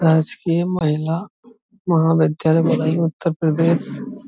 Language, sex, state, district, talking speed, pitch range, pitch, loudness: Hindi, male, Uttar Pradesh, Budaun, 85 wpm, 160-180 Hz, 165 Hz, -19 LUFS